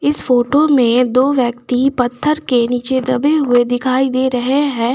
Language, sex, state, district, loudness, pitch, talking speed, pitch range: Hindi, female, Jharkhand, Garhwa, -15 LUFS, 255 Hz, 170 wpm, 245-275 Hz